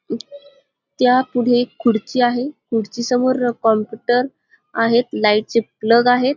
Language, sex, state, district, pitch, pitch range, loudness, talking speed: Marathi, female, Maharashtra, Dhule, 245 Hz, 230-255 Hz, -18 LUFS, 115 wpm